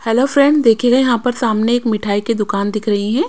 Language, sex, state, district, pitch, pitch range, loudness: Hindi, female, Punjab, Kapurthala, 230 Hz, 210-250 Hz, -15 LUFS